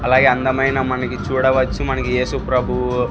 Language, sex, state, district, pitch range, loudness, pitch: Telugu, male, Andhra Pradesh, Sri Satya Sai, 125-130 Hz, -18 LUFS, 130 Hz